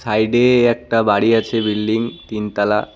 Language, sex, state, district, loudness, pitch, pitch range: Bengali, male, West Bengal, Cooch Behar, -17 LUFS, 110 Hz, 105-115 Hz